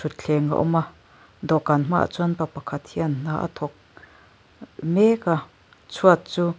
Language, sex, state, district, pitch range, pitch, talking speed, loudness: Mizo, female, Mizoram, Aizawl, 150-170 Hz, 160 Hz, 155 wpm, -23 LUFS